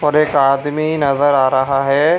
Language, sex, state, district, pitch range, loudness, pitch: Hindi, male, Bihar, Supaul, 135-150 Hz, -15 LUFS, 145 Hz